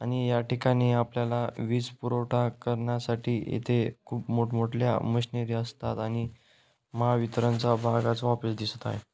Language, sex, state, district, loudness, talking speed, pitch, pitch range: Marathi, male, Maharashtra, Dhule, -29 LUFS, 120 wpm, 120 Hz, 115-120 Hz